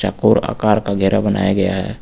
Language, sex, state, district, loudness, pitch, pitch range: Hindi, male, Uttar Pradesh, Lucknow, -16 LUFS, 100 Hz, 100-105 Hz